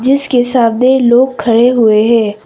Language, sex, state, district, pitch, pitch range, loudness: Hindi, female, Arunachal Pradesh, Papum Pare, 240 Hz, 230-255 Hz, -10 LUFS